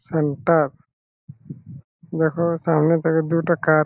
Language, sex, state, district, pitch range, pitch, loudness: Bengali, male, West Bengal, Malda, 145-165 Hz, 160 Hz, -20 LUFS